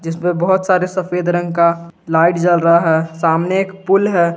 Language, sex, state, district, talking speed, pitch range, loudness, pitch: Hindi, male, Jharkhand, Garhwa, 190 wpm, 170-185 Hz, -15 LUFS, 175 Hz